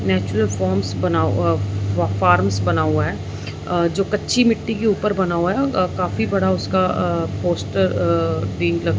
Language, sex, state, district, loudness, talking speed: Hindi, female, Punjab, Fazilka, -19 LUFS, 175 wpm